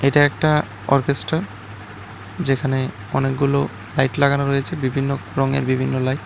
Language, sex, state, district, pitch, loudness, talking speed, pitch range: Bengali, male, Tripura, West Tripura, 135 Hz, -20 LUFS, 125 wpm, 130-140 Hz